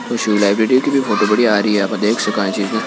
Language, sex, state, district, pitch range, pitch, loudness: Hindi, male, Rajasthan, Nagaur, 105-110 Hz, 105 Hz, -15 LUFS